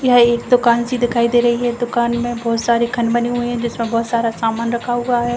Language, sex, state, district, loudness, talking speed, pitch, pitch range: Hindi, female, Uttar Pradesh, Deoria, -17 LUFS, 255 wpm, 240 Hz, 235-240 Hz